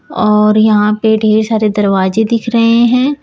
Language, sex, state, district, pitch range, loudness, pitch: Hindi, female, Uttar Pradesh, Shamli, 210-230 Hz, -11 LUFS, 220 Hz